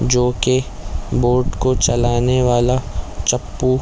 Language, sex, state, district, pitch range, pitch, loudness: Hindi, male, Chhattisgarh, Korba, 120-130 Hz, 125 Hz, -17 LUFS